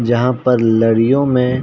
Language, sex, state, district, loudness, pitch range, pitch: Hindi, male, Uttar Pradesh, Ghazipur, -14 LUFS, 115-125 Hz, 125 Hz